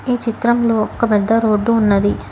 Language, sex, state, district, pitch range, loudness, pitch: Telugu, female, Telangana, Hyderabad, 210-235 Hz, -16 LUFS, 225 Hz